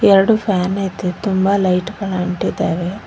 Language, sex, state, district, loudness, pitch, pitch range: Kannada, female, Karnataka, Bangalore, -17 LUFS, 195 Hz, 180-200 Hz